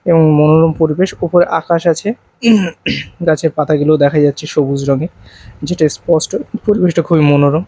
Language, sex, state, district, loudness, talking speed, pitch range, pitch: Bengali, male, Odisha, Malkangiri, -13 LUFS, 135 wpm, 150-175 Hz, 160 Hz